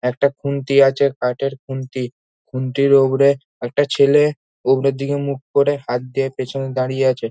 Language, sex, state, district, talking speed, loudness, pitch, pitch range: Bengali, male, West Bengal, North 24 Parganas, 140 wpm, -18 LUFS, 135 Hz, 130-140 Hz